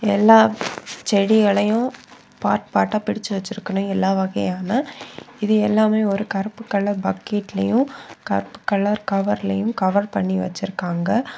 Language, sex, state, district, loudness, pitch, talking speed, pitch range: Tamil, female, Tamil Nadu, Kanyakumari, -20 LUFS, 205 Hz, 105 wpm, 195-220 Hz